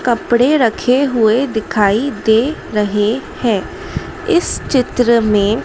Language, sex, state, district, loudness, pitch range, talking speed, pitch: Hindi, female, Madhya Pradesh, Dhar, -15 LUFS, 215-260 Hz, 105 wpm, 235 Hz